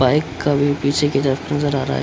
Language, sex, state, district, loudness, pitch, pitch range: Hindi, male, Bihar, Supaul, -19 LUFS, 145 Hz, 135-145 Hz